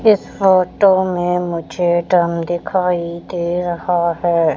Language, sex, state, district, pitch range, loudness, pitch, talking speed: Hindi, female, Madhya Pradesh, Katni, 170-185 Hz, -17 LUFS, 175 Hz, 120 wpm